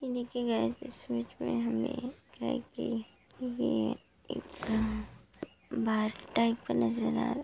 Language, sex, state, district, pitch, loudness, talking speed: Hindi, female, Bihar, Gopalganj, 120 Hz, -34 LUFS, 40 wpm